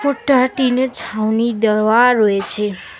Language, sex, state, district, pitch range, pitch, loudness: Bengali, female, West Bengal, Alipurduar, 215-255 Hz, 230 Hz, -16 LUFS